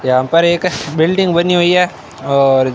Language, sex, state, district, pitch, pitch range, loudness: Hindi, male, Rajasthan, Bikaner, 165 Hz, 135-180 Hz, -13 LUFS